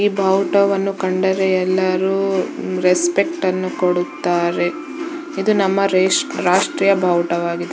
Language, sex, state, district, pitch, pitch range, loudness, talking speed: Kannada, female, Karnataka, Shimoga, 185 Hz, 180-195 Hz, -18 LUFS, 100 wpm